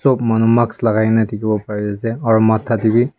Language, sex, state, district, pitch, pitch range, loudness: Nagamese, male, Nagaland, Kohima, 110 Hz, 110-115 Hz, -16 LUFS